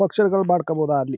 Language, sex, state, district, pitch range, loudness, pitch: Kannada, male, Karnataka, Chamarajanagar, 150-195 Hz, -20 LUFS, 175 Hz